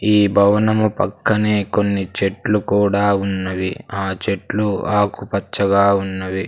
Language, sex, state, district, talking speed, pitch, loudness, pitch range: Telugu, male, Andhra Pradesh, Sri Satya Sai, 100 wpm, 100 Hz, -18 LUFS, 95-105 Hz